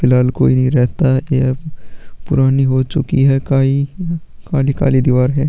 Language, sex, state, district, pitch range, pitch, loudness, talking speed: Hindi, male, Chhattisgarh, Sukma, 130-145 Hz, 135 Hz, -15 LUFS, 155 wpm